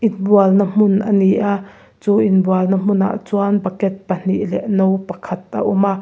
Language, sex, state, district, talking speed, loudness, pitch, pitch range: Mizo, female, Mizoram, Aizawl, 190 wpm, -16 LUFS, 195 Hz, 190-205 Hz